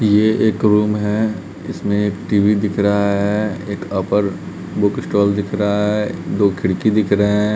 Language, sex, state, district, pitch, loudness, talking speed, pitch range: Hindi, male, Bihar, West Champaran, 105 Hz, -17 LUFS, 165 wpm, 100-105 Hz